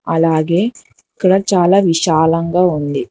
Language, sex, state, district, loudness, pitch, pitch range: Telugu, female, Telangana, Hyderabad, -14 LUFS, 175 Hz, 165-185 Hz